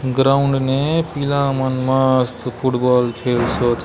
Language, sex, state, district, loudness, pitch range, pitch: Chhattisgarhi, male, Chhattisgarh, Bastar, -17 LUFS, 125-135 Hz, 130 Hz